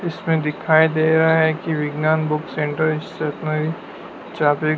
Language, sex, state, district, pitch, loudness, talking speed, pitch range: Hindi, male, Madhya Pradesh, Dhar, 155 Hz, -19 LUFS, 125 wpm, 150-160 Hz